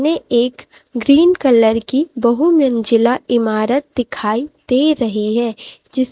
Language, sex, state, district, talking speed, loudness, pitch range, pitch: Hindi, female, Chhattisgarh, Raipur, 115 wpm, -15 LUFS, 230-280 Hz, 245 Hz